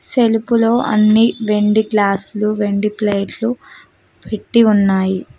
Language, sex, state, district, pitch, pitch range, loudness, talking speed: Telugu, female, Telangana, Mahabubabad, 215 Hz, 205-230 Hz, -15 LUFS, 110 wpm